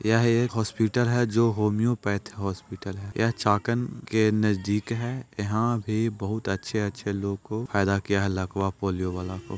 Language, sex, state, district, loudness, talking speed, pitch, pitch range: Hindi, male, Bihar, Jahanabad, -26 LUFS, 165 wpm, 105 Hz, 100-115 Hz